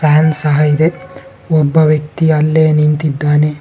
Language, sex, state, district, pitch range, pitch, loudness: Kannada, male, Karnataka, Bangalore, 150-155 Hz, 150 Hz, -12 LUFS